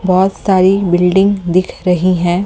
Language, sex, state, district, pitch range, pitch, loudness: Hindi, male, Delhi, New Delhi, 180-190 Hz, 185 Hz, -12 LUFS